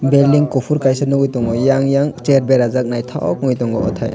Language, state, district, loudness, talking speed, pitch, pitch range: Kokborok, Tripura, West Tripura, -15 LUFS, 175 wpm, 135 Hz, 125-140 Hz